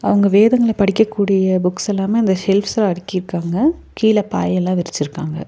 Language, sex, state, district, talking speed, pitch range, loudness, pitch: Tamil, female, Tamil Nadu, Nilgiris, 140 wpm, 180-215 Hz, -17 LUFS, 195 Hz